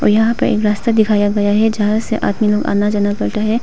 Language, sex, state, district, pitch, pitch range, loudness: Hindi, female, Arunachal Pradesh, Papum Pare, 210 Hz, 205-220 Hz, -15 LUFS